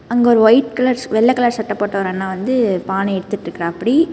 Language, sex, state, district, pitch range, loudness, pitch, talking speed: Tamil, female, Karnataka, Bangalore, 190-240 Hz, -16 LUFS, 220 Hz, 175 wpm